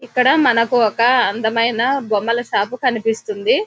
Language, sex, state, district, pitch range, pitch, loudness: Telugu, female, Telangana, Nalgonda, 230-255 Hz, 240 Hz, -16 LUFS